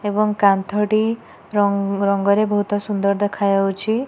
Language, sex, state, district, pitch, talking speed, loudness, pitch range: Odia, female, Odisha, Nuapada, 205 Hz, 120 wpm, -19 LUFS, 200-210 Hz